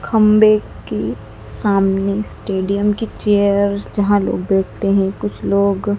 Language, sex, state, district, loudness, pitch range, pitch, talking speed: Hindi, female, Madhya Pradesh, Dhar, -17 LUFS, 195-210 Hz, 200 Hz, 120 wpm